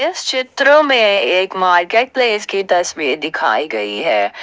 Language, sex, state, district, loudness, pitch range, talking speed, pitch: Hindi, female, Jharkhand, Ranchi, -14 LUFS, 185-260 Hz, 135 wpm, 215 Hz